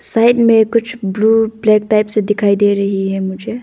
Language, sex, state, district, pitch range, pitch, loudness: Hindi, female, Arunachal Pradesh, Longding, 200-225 Hz, 215 Hz, -14 LUFS